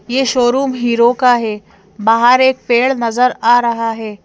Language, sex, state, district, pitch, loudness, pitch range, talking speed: Hindi, female, Madhya Pradesh, Bhopal, 240 Hz, -13 LUFS, 225-250 Hz, 170 wpm